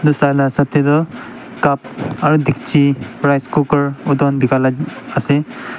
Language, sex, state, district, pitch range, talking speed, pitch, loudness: Nagamese, male, Nagaland, Dimapur, 140-150 Hz, 145 wpm, 145 Hz, -16 LUFS